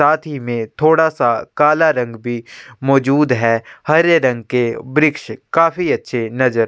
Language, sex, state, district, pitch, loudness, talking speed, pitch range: Hindi, male, Chhattisgarh, Sukma, 130 Hz, -16 LUFS, 150 wpm, 120-155 Hz